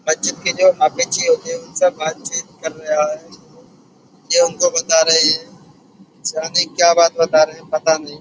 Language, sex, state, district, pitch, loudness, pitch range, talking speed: Hindi, male, Uttar Pradesh, Budaun, 170 Hz, -16 LUFS, 160-260 Hz, 175 wpm